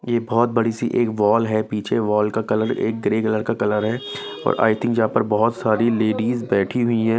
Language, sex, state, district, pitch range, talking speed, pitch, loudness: Hindi, male, Bihar, Patna, 110-115 Hz, 235 wpm, 110 Hz, -20 LUFS